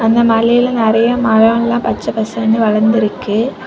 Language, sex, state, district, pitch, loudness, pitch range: Tamil, female, Tamil Nadu, Kanyakumari, 225 Hz, -13 LUFS, 220-235 Hz